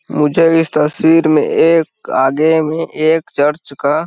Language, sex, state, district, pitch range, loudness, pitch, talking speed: Hindi, male, Chhattisgarh, Sarguja, 150-165 Hz, -13 LUFS, 155 Hz, 160 wpm